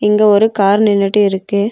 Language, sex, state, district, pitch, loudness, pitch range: Tamil, female, Tamil Nadu, Nilgiris, 205 Hz, -12 LUFS, 200-210 Hz